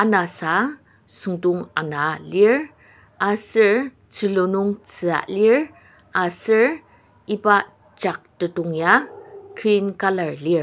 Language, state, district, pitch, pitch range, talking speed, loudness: Ao, Nagaland, Dimapur, 200 Hz, 175-220 Hz, 95 wpm, -20 LUFS